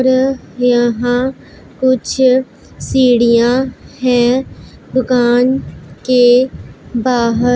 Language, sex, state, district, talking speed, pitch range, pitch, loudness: Hindi, female, Punjab, Pathankot, 65 wpm, 245-260 Hz, 250 Hz, -13 LUFS